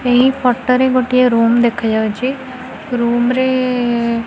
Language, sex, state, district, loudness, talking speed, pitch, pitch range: Odia, female, Odisha, Khordha, -14 LUFS, 140 wpm, 250 Hz, 235-255 Hz